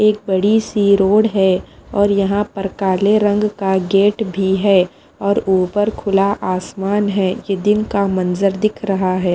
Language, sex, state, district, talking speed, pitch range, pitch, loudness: Hindi, female, Punjab, Fazilka, 160 wpm, 190-210 Hz, 200 Hz, -16 LUFS